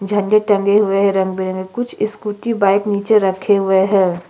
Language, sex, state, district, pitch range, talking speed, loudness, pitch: Hindi, female, Chhattisgarh, Sukma, 190-210 Hz, 165 wpm, -16 LUFS, 200 Hz